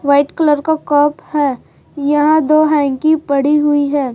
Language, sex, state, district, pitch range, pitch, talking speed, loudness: Hindi, female, Chhattisgarh, Raipur, 285-305 Hz, 295 Hz, 160 wpm, -14 LUFS